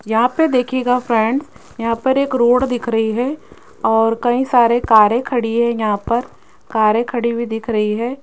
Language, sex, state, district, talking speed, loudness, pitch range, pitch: Hindi, female, Rajasthan, Jaipur, 180 wpm, -16 LUFS, 225-250 Hz, 235 Hz